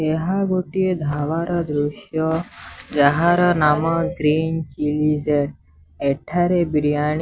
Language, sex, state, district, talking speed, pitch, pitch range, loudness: Odia, male, Odisha, Sambalpur, 90 wpm, 155 Hz, 150-175 Hz, -20 LUFS